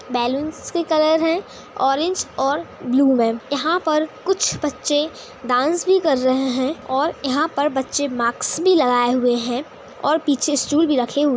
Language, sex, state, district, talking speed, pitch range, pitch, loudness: Hindi, female, Uttar Pradesh, Hamirpur, 175 wpm, 255-315 Hz, 285 Hz, -19 LUFS